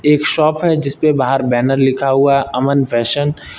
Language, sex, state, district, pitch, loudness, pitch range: Hindi, male, Uttar Pradesh, Lucknow, 140 Hz, -14 LUFS, 135-150 Hz